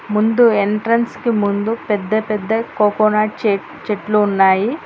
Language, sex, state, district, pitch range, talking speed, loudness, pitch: Telugu, female, Telangana, Hyderabad, 205-225 Hz, 110 wpm, -16 LUFS, 215 Hz